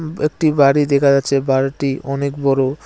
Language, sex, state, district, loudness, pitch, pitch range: Bengali, male, West Bengal, Cooch Behar, -16 LUFS, 140 Hz, 135-145 Hz